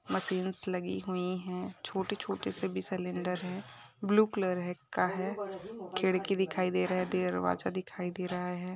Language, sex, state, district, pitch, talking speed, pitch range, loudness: Hindi, female, Maharashtra, Dhule, 185 Hz, 165 wpm, 180-190 Hz, -34 LUFS